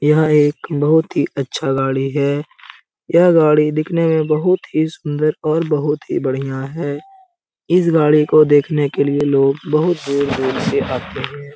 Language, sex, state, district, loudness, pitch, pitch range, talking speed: Hindi, male, Bihar, Jamui, -16 LUFS, 150 Hz, 140-160 Hz, 170 wpm